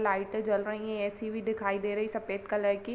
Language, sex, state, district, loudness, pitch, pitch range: Hindi, female, Uttar Pradesh, Varanasi, -32 LUFS, 210 Hz, 200-220 Hz